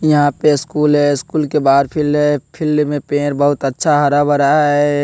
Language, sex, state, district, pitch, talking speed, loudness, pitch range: Hindi, male, Bihar, West Champaran, 145 Hz, 200 wpm, -14 LUFS, 145-150 Hz